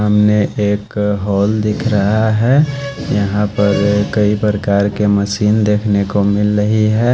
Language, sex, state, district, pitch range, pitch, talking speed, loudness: Hindi, male, Haryana, Charkhi Dadri, 100-110 Hz, 105 Hz, 145 wpm, -14 LUFS